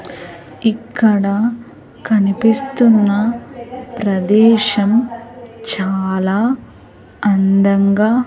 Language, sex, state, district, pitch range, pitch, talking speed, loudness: Telugu, female, Andhra Pradesh, Sri Satya Sai, 200-235 Hz, 215 Hz, 35 wpm, -14 LUFS